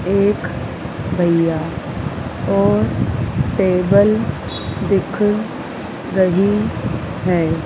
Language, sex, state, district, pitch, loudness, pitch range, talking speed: Hindi, female, Madhya Pradesh, Dhar, 190 Hz, -18 LUFS, 175-205 Hz, 55 wpm